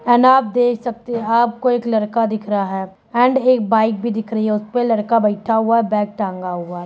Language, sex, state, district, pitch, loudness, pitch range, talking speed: Hindi, female, Bihar, Sitamarhi, 225 Hz, -17 LUFS, 210-240 Hz, 235 wpm